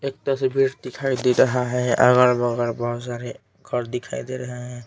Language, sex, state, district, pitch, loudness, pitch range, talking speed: Hindi, male, Bihar, Patna, 125 Hz, -22 LUFS, 120-130 Hz, 170 wpm